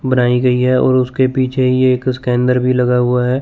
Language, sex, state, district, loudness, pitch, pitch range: Hindi, male, Chandigarh, Chandigarh, -14 LUFS, 125 Hz, 125-130 Hz